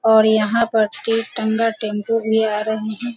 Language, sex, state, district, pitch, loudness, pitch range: Hindi, female, Bihar, Sitamarhi, 220 Hz, -19 LUFS, 215-225 Hz